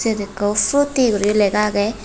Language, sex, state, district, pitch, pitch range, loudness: Chakma, female, Tripura, West Tripura, 210 Hz, 205-225 Hz, -17 LUFS